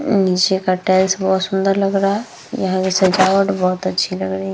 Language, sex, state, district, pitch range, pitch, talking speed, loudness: Hindi, female, Bihar, Vaishali, 185-195 Hz, 190 Hz, 225 wpm, -17 LUFS